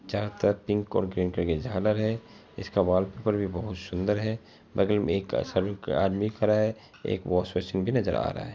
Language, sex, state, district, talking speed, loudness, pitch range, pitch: Hindi, female, Bihar, Araria, 195 wpm, -28 LUFS, 95-105 Hz, 100 Hz